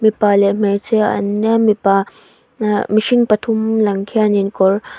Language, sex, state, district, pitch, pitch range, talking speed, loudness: Mizo, female, Mizoram, Aizawl, 210 Hz, 200-220 Hz, 155 wpm, -15 LUFS